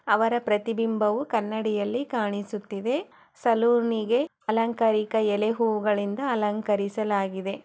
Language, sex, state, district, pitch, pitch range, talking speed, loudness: Kannada, female, Karnataka, Chamarajanagar, 220 Hz, 210-230 Hz, 70 wpm, -26 LUFS